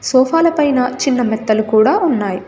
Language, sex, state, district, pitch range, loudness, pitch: Telugu, female, Telangana, Komaram Bheem, 220-300 Hz, -14 LUFS, 255 Hz